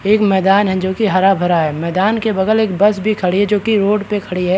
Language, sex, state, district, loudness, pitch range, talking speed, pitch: Hindi, male, Bihar, Kishanganj, -15 LUFS, 185-210 Hz, 260 wpm, 200 Hz